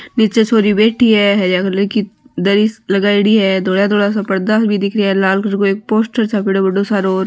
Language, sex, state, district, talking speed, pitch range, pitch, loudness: Marwari, female, Rajasthan, Nagaur, 205 wpm, 195-215 Hz, 205 Hz, -14 LUFS